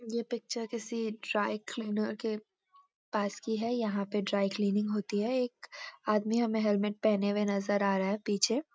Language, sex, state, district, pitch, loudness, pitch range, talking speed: Hindi, female, Uttarakhand, Uttarkashi, 215 Hz, -32 LUFS, 205-230 Hz, 160 wpm